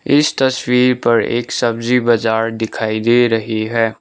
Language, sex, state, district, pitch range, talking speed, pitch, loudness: Hindi, male, Sikkim, Gangtok, 115-125 Hz, 150 wpm, 115 Hz, -15 LUFS